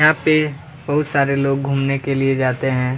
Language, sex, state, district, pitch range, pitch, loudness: Hindi, male, Chhattisgarh, Kabirdham, 135-150 Hz, 140 Hz, -18 LUFS